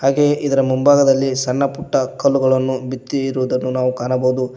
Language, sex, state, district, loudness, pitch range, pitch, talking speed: Kannada, male, Karnataka, Koppal, -17 LUFS, 130-140 Hz, 130 Hz, 120 wpm